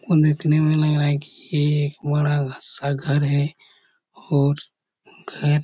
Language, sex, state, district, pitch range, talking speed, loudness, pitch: Hindi, male, Chhattisgarh, Korba, 145-155 Hz, 150 wpm, -21 LUFS, 150 Hz